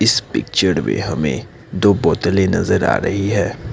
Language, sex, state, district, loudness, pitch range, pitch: Hindi, male, Assam, Kamrup Metropolitan, -17 LUFS, 95-105 Hz, 100 Hz